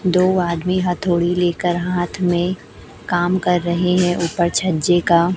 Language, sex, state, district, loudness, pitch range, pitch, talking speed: Hindi, female, Chhattisgarh, Raipur, -18 LUFS, 175-180 Hz, 175 Hz, 145 wpm